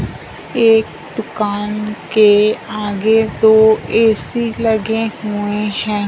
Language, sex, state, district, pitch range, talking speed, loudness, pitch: Hindi, male, Punjab, Fazilka, 210-225 Hz, 90 wpm, -14 LUFS, 215 Hz